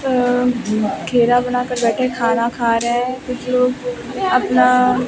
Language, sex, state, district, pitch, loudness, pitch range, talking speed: Hindi, female, Bihar, Katihar, 250 Hz, -17 LUFS, 240-250 Hz, 155 wpm